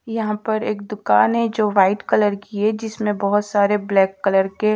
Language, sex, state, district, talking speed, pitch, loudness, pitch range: Hindi, female, Odisha, Malkangiri, 200 wpm, 210 Hz, -19 LUFS, 200-215 Hz